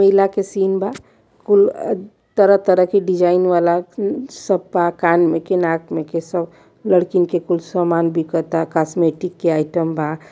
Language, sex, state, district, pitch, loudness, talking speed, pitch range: Hindi, male, Uttar Pradesh, Varanasi, 175 Hz, -17 LUFS, 165 wpm, 165-195 Hz